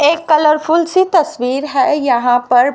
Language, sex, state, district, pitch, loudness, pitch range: Hindi, female, Haryana, Rohtak, 300 Hz, -13 LUFS, 250-330 Hz